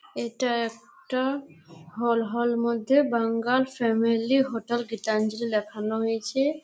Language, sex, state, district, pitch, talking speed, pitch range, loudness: Bengali, female, West Bengal, Malda, 235 Hz, 100 wpm, 225-255 Hz, -26 LUFS